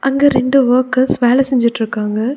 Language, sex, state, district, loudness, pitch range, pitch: Tamil, female, Tamil Nadu, Nilgiris, -14 LUFS, 235-270 Hz, 255 Hz